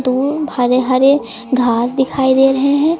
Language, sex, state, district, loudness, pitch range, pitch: Hindi, female, Uttar Pradesh, Lucknow, -14 LUFS, 255-280 Hz, 265 Hz